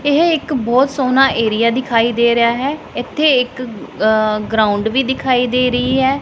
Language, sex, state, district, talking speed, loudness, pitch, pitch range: Punjabi, female, Punjab, Pathankot, 165 wpm, -15 LUFS, 250 Hz, 230-270 Hz